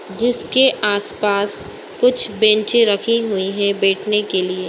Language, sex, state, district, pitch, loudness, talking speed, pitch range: Hindi, female, Rajasthan, Churu, 210 Hz, -17 LUFS, 140 wpm, 200-230 Hz